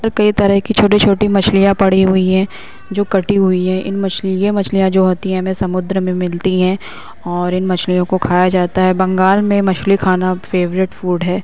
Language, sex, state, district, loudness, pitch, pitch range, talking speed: Hindi, female, Uttar Pradesh, Hamirpur, -14 LUFS, 190 Hz, 185-195 Hz, 205 wpm